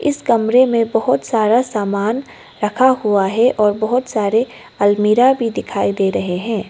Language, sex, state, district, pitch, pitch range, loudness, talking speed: Hindi, female, Arunachal Pradesh, Lower Dibang Valley, 225 Hz, 210-250 Hz, -16 LUFS, 160 wpm